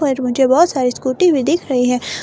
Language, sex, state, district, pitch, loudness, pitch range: Hindi, female, Himachal Pradesh, Shimla, 260 Hz, -15 LUFS, 250-300 Hz